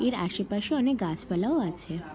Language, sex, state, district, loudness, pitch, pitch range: Bengali, female, West Bengal, Jalpaiguri, -29 LUFS, 185 Hz, 170-245 Hz